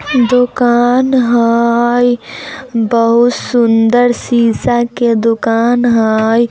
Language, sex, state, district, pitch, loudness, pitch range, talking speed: Bajjika, female, Bihar, Vaishali, 240 Hz, -11 LUFS, 230-245 Hz, 75 wpm